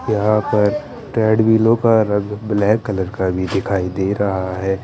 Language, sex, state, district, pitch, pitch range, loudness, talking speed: Hindi, male, Bihar, Kaimur, 105 Hz, 95-110 Hz, -17 LUFS, 160 wpm